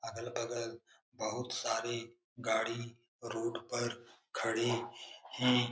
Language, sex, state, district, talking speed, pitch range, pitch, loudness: Hindi, male, Bihar, Jamui, 85 wpm, 115-120 Hz, 115 Hz, -37 LUFS